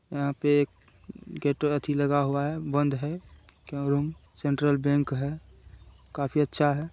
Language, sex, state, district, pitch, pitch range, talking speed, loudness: Hindi, male, Bihar, Jamui, 145 Hz, 140-145 Hz, 165 wpm, -27 LUFS